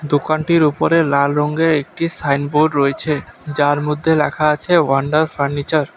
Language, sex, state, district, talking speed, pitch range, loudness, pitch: Bengali, male, West Bengal, Alipurduar, 140 wpm, 145-155 Hz, -16 LUFS, 150 Hz